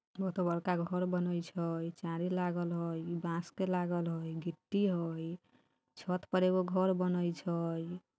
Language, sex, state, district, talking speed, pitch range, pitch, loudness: Bajjika, female, Bihar, Vaishali, 145 wpm, 170-180 Hz, 175 Hz, -35 LUFS